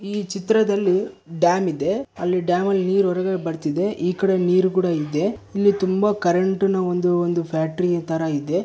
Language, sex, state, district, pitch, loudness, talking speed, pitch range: Kannada, male, Karnataka, Bellary, 180 Hz, -21 LUFS, 145 wpm, 175-195 Hz